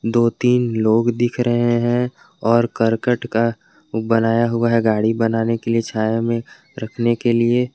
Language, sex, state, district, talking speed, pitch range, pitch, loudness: Hindi, male, Jharkhand, Garhwa, 155 wpm, 115-120 Hz, 115 Hz, -18 LUFS